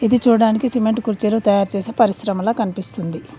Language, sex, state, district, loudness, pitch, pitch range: Telugu, female, Telangana, Mahabubabad, -18 LUFS, 220 Hz, 200-230 Hz